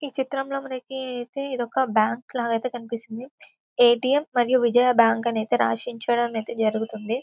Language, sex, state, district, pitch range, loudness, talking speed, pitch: Telugu, female, Telangana, Karimnagar, 230-260 Hz, -23 LUFS, 165 wpm, 240 Hz